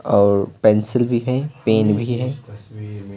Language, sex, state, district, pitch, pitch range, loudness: Hindi, male, Bihar, Patna, 110 Hz, 105-120 Hz, -18 LUFS